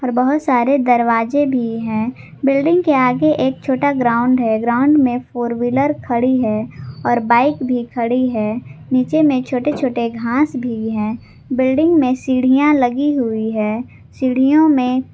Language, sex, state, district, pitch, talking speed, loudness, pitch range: Hindi, female, Jharkhand, Garhwa, 255 Hz, 155 wpm, -16 LUFS, 235-275 Hz